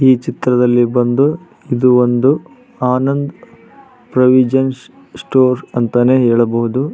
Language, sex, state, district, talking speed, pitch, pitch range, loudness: Kannada, male, Karnataka, Raichur, 85 wpm, 125 Hz, 120-135 Hz, -14 LUFS